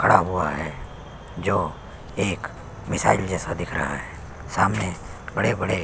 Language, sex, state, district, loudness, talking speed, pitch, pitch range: Hindi, male, Chhattisgarh, Sukma, -25 LUFS, 155 wpm, 85 Hz, 75-95 Hz